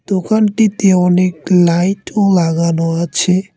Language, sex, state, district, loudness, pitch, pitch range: Bengali, male, West Bengal, Cooch Behar, -13 LUFS, 185 Hz, 170-195 Hz